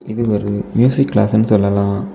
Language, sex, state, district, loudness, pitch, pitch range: Tamil, male, Tamil Nadu, Kanyakumari, -15 LUFS, 105 Hz, 100-115 Hz